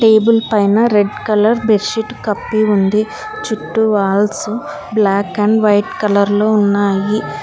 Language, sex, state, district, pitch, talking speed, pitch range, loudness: Telugu, female, Telangana, Hyderabad, 215 Hz, 130 wpm, 205-220 Hz, -14 LUFS